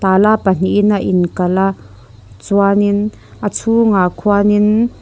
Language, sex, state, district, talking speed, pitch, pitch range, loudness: Mizo, female, Mizoram, Aizawl, 120 wpm, 200 Hz, 180-210 Hz, -14 LUFS